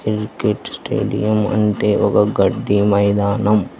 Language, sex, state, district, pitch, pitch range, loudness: Telugu, male, Telangana, Hyderabad, 105 Hz, 100-105 Hz, -17 LUFS